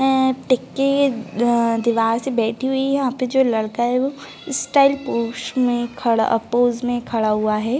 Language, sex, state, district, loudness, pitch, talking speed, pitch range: Hindi, female, Uttar Pradesh, Gorakhpur, -19 LUFS, 245 Hz, 185 wpm, 230-265 Hz